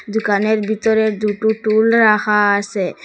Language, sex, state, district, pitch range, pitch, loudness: Bengali, female, Assam, Hailakandi, 205-220 Hz, 215 Hz, -16 LUFS